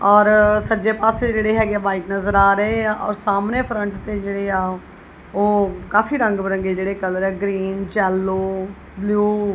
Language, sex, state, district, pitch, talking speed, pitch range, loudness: Punjabi, female, Punjab, Kapurthala, 200 Hz, 175 wpm, 195-210 Hz, -19 LUFS